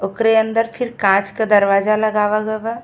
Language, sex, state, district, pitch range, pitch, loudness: Bhojpuri, female, Uttar Pradesh, Ghazipur, 205-225 Hz, 215 Hz, -16 LUFS